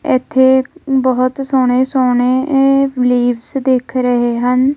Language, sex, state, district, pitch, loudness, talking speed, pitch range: Punjabi, female, Punjab, Kapurthala, 255 Hz, -14 LUFS, 100 wpm, 250-270 Hz